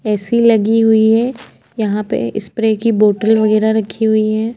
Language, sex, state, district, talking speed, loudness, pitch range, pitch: Hindi, female, Uttar Pradesh, Jyotiba Phule Nagar, 170 wpm, -14 LUFS, 215-225 Hz, 220 Hz